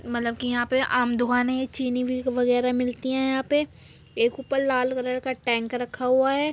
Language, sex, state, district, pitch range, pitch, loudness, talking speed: Hindi, female, Uttar Pradesh, Muzaffarnagar, 245-260 Hz, 250 Hz, -24 LUFS, 210 wpm